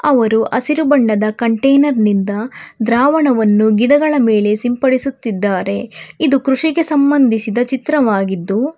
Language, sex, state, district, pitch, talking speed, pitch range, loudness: Kannada, female, Karnataka, Bangalore, 245 Hz, 90 wpm, 215-280 Hz, -14 LUFS